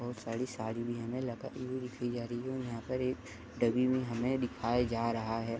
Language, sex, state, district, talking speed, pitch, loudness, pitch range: Hindi, male, Uttar Pradesh, Gorakhpur, 150 wpm, 120 Hz, -35 LUFS, 115-125 Hz